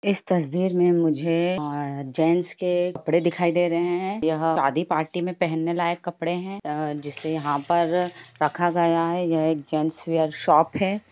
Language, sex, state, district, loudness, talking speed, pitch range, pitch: Hindi, female, Chhattisgarh, Raigarh, -23 LUFS, 175 wpm, 155-175 Hz, 170 Hz